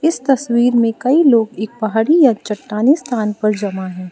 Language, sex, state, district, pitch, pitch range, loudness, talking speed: Hindi, female, Arunachal Pradesh, Lower Dibang Valley, 230 Hz, 210-260 Hz, -15 LUFS, 190 wpm